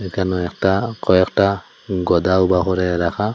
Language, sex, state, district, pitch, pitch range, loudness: Bengali, male, Assam, Hailakandi, 95 Hz, 90-100 Hz, -18 LUFS